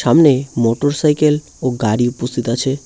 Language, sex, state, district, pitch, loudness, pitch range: Bengali, male, West Bengal, Cooch Behar, 130 Hz, -16 LUFS, 120-150 Hz